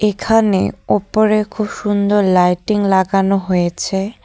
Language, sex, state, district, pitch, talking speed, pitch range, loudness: Bengali, female, West Bengal, Cooch Behar, 200 Hz, 100 wpm, 190-210 Hz, -15 LUFS